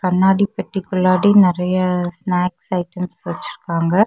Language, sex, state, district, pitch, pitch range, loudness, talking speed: Tamil, female, Tamil Nadu, Kanyakumari, 185 Hz, 180-190 Hz, -18 LUFS, 90 wpm